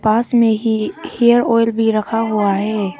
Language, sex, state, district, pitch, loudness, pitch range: Hindi, female, Arunachal Pradesh, Papum Pare, 225 Hz, -16 LUFS, 215-230 Hz